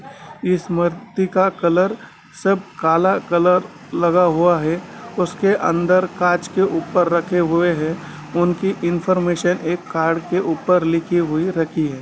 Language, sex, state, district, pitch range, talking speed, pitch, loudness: Hindi, male, Bihar, Gaya, 165-185 Hz, 140 wpm, 175 Hz, -18 LUFS